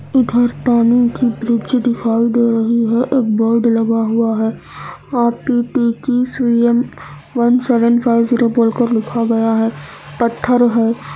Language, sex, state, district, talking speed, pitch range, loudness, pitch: Hindi, female, Andhra Pradesh, Anantapur, 95 wpm, 230-240 Hz, -15 LUFS, 235 Hz